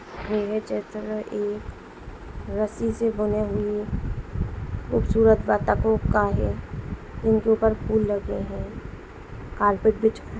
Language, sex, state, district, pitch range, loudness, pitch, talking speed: Hindi, female, Bihar, East Champaran, 205-220 Hz, -25 LUFS, 215 Hz, 115 wpm